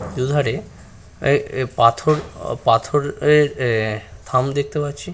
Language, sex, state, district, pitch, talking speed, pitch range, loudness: Bengali, male, West Bengal, Purulia, 140 Hz, 105 wpm, 120-145 Hz, -19 LUFS